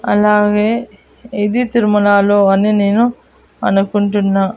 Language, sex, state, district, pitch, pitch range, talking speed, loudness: Telugu, female, Andhra Pradesh, Annamaya, 205 Hz, 200-220 Hz, 80 wpm, -13 LUFS